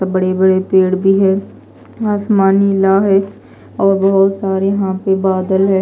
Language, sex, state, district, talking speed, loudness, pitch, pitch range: Hindi, female, Maharashtra, Gondia, 155 wpm, -13 LUFS, 195 Hz, 190-195 Hz